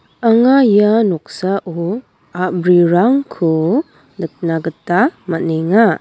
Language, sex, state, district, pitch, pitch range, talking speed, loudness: Garo, female, Meghalaya, West Garo Hills, 180 Hz, 170-225 Hz, 70 wpm, -14 LUFS